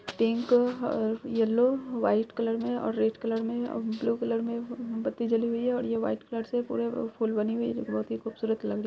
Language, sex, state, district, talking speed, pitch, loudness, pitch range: Hindi, female, Bihar, Araria, 230 wpm, 230 Hz, -29 LUFS, 225-240 Hz